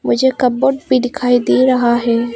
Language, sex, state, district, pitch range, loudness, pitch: Hindi, female, Arunachal Pradesh, Papum Pare, 240-260 Hz, -14 LUFS, 250 Hz